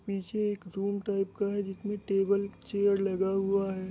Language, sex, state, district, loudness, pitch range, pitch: Hindi, male, Bihar, Muzaffarpur, -31 LUFS, 195-200 Hz, 200 Hz